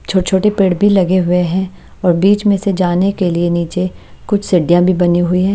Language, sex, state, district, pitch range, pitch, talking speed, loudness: Hindi, female, Himachal Pradesh, Shimla, 175-195 Hz, 185 Hz, 215 wpm, -14 LUFS